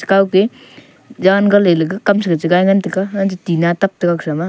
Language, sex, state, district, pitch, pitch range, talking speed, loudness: Wancho, male, Arunachal Pradesh, Longding, 190 Hz, 175-195 Hz, 200 wpm, -14 LUFS